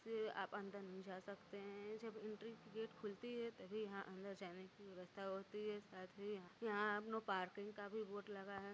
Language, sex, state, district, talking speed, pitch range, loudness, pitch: Hindi, female, Uttar Pradesh, Varanasi, 200 wpm, 195-215 Hz, -50 LUFS, 205 Hz